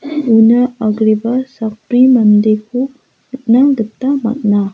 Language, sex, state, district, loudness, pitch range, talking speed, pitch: Garo, female, Meghalaya, West Garo Hills, -12 LUFS, 215-255 Hz, 90 wpm, 235 Hz